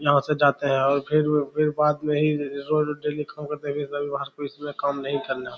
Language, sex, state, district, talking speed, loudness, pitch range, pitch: Hindi, male, Bihar, Saran, 215 wpm, -24 LUFS, 140-150 Hz, 145 Hz